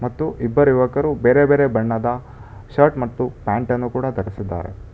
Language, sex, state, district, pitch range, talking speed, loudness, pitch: Kannada, male, Karnataka, Bangalore, 110-135 Hz, 120 wpm, -19 LUFS, 125 Hz